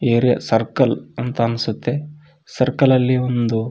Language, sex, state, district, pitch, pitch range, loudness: Kannada, male, Karnataka, Raichur, 125 Hz, 115-135 Hz, -19 LUFS